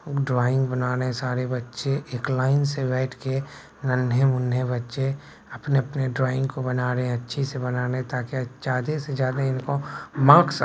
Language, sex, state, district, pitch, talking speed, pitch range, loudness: Maithili, male, Bihar, Begusarai, 130 Hz, 170 wpm, 125-135 Hz, -24 LUFS